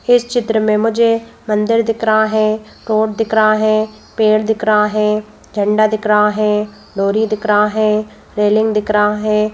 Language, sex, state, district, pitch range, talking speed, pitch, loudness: Hindi, female, Madhya Pradesh, Bhopal, 210-220 Hz, 175 wpm, 215 Hz, -15 LUFS